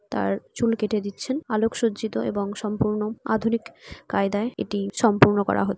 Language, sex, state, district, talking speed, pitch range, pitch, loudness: Bengali, female, West Bengal, Purulia, 145 wpm, 200-230 Hz, 215 Hz, -24 LUFS